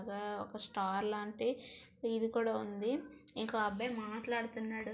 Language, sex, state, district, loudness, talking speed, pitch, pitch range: Telugu, female, Andhra Pradesh, Srikakulam, -38 LUFS, 110 wpm, 220 Hz, 210-235 Hz